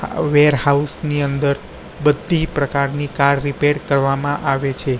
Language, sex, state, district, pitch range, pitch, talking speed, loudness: Gujarati, male, Gujarat, Gandhinagar, 140-145 Hz, 140 Hz, 120 wpm, -18 LUFS